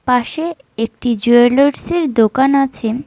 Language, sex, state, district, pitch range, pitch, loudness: Bengali, female, West Bengal, Alipurduar, 235-280 Hz, 255 Hz, -15 LUFS